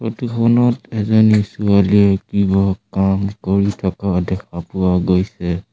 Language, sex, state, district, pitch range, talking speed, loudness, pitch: Assamese, male, Assam, Sonitpur, 95-105 Hz, 115 wpm, -16 LUFS, 100 Hz